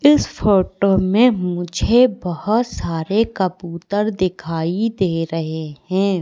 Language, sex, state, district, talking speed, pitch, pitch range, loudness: Hindi, female, Madhya Pradesh, Katni, 105 wpm, 185 Hz, 170-210 Hz, -18 LUFS